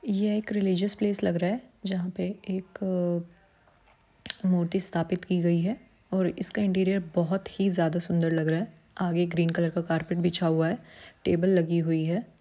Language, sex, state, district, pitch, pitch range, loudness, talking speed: Hindi, female, Uttarakhand, Tehri Garhwal, 180 Hz, 170-195 Hz, -28 LUFS, 180 wpm